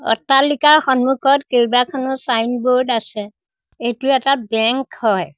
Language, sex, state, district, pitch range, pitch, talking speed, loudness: Assamese, female, Assam, Sonitpur, 230-270 Hz, 250 Hz, 100 wpm, -16 LUFS